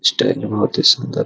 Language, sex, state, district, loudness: Hindi, male, Bihar, Araria, -16 LUFS